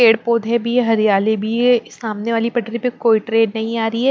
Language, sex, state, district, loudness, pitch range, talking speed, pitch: Hindi, female, Maharashtra, Mumbai Suburban, -17 LUFS, 220-235 Hz, 220 wpm, 230 Hz